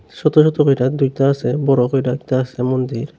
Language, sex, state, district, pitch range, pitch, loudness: Bengali, male, Tripura, Unakoti, 125-145 Hz, 135 Hz, -17 LUFS